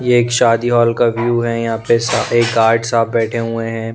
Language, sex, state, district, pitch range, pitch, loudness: Hindi, male, Punjab, Pathankot, 115-120 Hz, 115 Hz, -15 LUFS